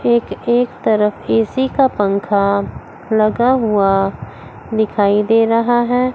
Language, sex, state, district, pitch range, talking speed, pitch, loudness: Hindi, female, Chandigarh, Chandigarh, 200-240 Hz, 115 wpm, 220 Hz, -15 LUFS